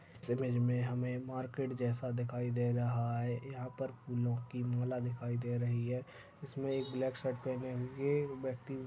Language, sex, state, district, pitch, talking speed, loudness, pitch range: Hindi, male, Maharashtra, Aurangabad, 125 Hz, 175 wpm, -38 LUFS, 120-130 Hz